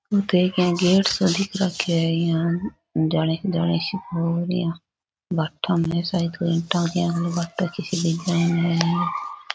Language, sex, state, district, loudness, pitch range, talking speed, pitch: Rajasthani, female, Rajasthan, Churu, -22 LUFS, 170-185 Hz, 50 wpm, 170 Hz